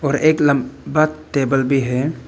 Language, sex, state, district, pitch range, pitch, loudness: Hindi, male, Arunachal Pradesh, Papum Pare, 135-155 Hz, 140 Hz, -18 LUFS